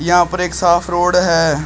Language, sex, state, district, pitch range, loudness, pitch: Hindi, male, Uttar Pradesh, Shamli, 170-180 Hz, -14 LUFS, 175 Hz